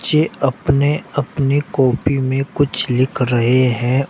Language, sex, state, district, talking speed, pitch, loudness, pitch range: Hindi, male, Uttar Pradesh, Shamli, 130 wpm, 135 Hz, -17 LUFS, 130-145 Hz